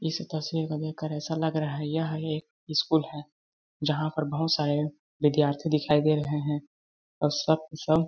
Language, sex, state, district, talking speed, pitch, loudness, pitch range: Hindi, male, Chhattisgarh, Balrampur, 185 wpm, 155 Hz, -28 LUFS, 150-160 Hz